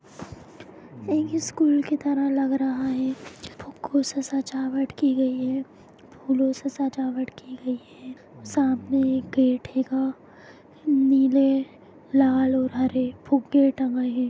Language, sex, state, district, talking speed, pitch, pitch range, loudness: Hindi, female, Jharkhand, Jamtara, 130 wpm, 265 Hz, 260-275 Hz, -24 LUFS